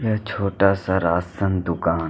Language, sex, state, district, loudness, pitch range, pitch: Hindi, male, Chhattisgarh, Kabirdham, -21 LUFS, 85-100 Hz, 95 Hz